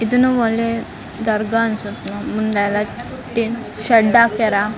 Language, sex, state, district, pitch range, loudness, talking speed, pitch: Kannada, female, Karnataka, Raichur, 215-230 Hz, -18 LUFS, 100 wpm, 225 Hz